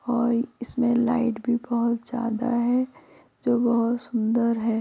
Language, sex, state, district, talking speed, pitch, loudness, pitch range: Hindi, female, Uttar Pradesh, Muzaffarnagar, 135 wpm, 240 Hz, -24 LUFS, 235-245 Hz